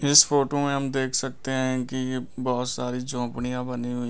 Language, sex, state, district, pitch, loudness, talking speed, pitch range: Hindi, male, Uttar Pradesh, Lalitpur, 130 Hz, -25 LUFS, 205 wpm, 125-135 Hz